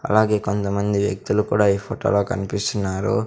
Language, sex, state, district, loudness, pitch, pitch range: Telugu, male, Andhra Pradesh, Sri Satya Sai, -21 LUFS, 100 Hz, 100-105 Hz